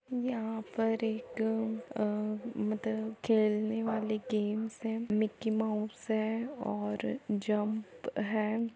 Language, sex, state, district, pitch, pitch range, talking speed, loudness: Hindi, female, Uttar Pradesh, Jalaun, 220 Hz, 215-225 Hz, 110 wpm, -34 LUFS